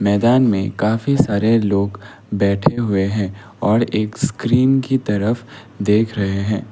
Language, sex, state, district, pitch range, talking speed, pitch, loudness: Hindi, male, Assam, Kamrup Metropolitan, 100-115 Hz, 145 wpm, 105 Hz, -18 LUFS